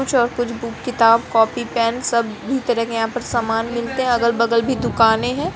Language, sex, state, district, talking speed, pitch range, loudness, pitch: Hindi, female, Uttar Pradesh, Jalaun, 225 wpm, 230-245 Hz, -18 LUFS, 235 Hz